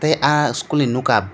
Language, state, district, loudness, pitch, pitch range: Kokborok, Tripura, Dhalai, -18 LUFS, 145 Hz, 125-150 Hz